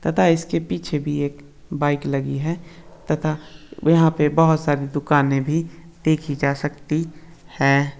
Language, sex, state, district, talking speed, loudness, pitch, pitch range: Hindi, male, Maharashtra, Nagpur, 145 wpm, -21 LUFS, 150 Hz, 145-160 Hz